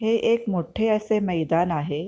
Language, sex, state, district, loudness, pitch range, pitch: Marathi, female, Maharashtra, Pune, -23 LUFS, 165-220 Hz, 190 Hz